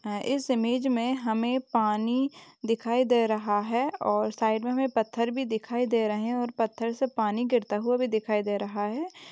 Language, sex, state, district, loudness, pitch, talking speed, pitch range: Hindi, female, Uttar Pradesh, Etah, -27 LUFS, 230 Hz, 195 wpm, 220-250 Hz